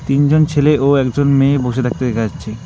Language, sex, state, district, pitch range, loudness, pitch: Bengali, male, West Bengal, Alipurduar, 125-145 Hz, -14 LUFS, 140 Hz